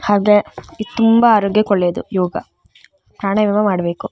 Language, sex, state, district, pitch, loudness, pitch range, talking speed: Kannada, female, Karnataka, Shimoga, 205 Hz, -15 LUFS, 195-215 Hz, 100 wpm